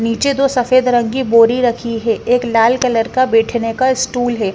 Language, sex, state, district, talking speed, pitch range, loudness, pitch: Hindi, female, Haryana, Rohtak, 210 wpm, 230-255 Hz, -14 LUFS, 240 Hz